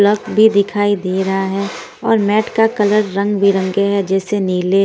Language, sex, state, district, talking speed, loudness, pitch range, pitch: Hindi, female, Punjab, Kapurthala, 185 wpm, -15 LUFS, 195-210 Hz, 200 Hz